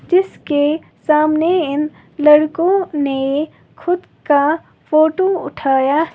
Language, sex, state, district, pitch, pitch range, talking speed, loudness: Hindi, female, Uttar Pradesh, Lalitpur, 305 Hz, 290-345 Hz, 100 wpm, -16 LUFS